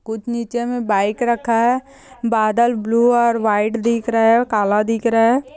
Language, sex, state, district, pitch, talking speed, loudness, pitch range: Hindi, female, Andhra Pradesh, Chittoor, 235 Hz, 195 wpm, -17 LUFS, 220-240 Hz